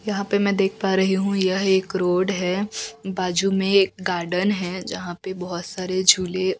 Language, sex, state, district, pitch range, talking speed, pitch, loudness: Hindi, female, Chhattisgarh, Raipur, 185-195 Hz, 190 wpm, 190 Hz, -22 LUFS